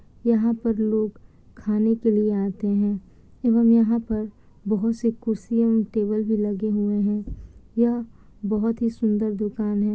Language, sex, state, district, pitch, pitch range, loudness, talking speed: Hindi, female, Bihar, Kishanganj, 215 Hz, 210-230 Hz, -23 LUFS, 155 wpm